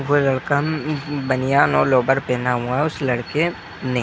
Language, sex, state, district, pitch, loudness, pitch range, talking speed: Hindi, male, Bihar, Muzaffarpur, 135 Hz, -20 LUFS, 130-150 Hz, 180 wpm